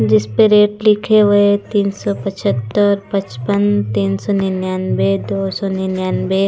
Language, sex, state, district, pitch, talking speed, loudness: Hindi, female, Chandigarh, Chandigarh, 195 Hz, 150 wpm, -15 LUFS